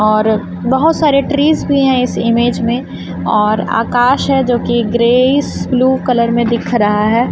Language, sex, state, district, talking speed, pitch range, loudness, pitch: Hindi, female, Chhattisgarh, Raipur, 180 wpm, 225-260 Hz, -13 LUFS, 240 Hz